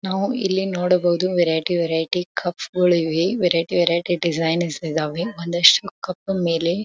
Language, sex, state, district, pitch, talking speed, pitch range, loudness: Kannada, female, Karnataka, Belgaum, 175 Hz, 130 wpm, 165-185 Hz, -20 LUFS